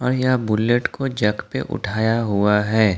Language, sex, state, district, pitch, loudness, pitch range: Hindi, male, Jharkhand, Ranchi, 110 Hz, -20 LUFS, 105-120 Hz